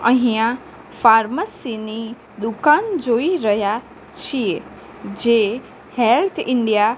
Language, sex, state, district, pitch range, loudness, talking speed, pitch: Gujarati, female, Gujarat, Gandhinagar, 220-255 Hz, -18 LUFS, 95 wpm, 235 Hz